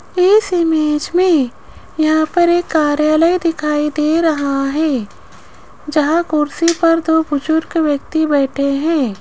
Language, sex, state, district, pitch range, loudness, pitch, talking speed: Hindi, female, Rajasthan, Jaipur, 295-330 Hz, -15 LUFS, 310 Hz, 125 wpm